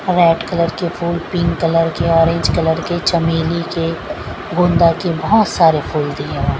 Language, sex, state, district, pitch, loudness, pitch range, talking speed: Hindi, female, Maharashtra, Mumbai Suburban, 170 Hz, -16 LUFS, 165-175 Hz, 180 wpm